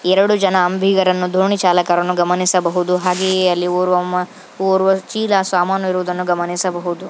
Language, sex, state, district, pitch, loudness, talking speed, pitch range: Kannada, female, Karnataka, Dharwad, 180 Hz, -16 LUFS, 100 wpm, 180-190 Hz